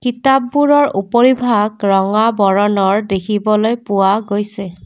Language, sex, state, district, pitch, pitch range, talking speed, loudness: Assamese, female, Assam, Kamrup Metropolitan, 210 Hz, 200-240 Hz, 85 wpm, -14 LUFS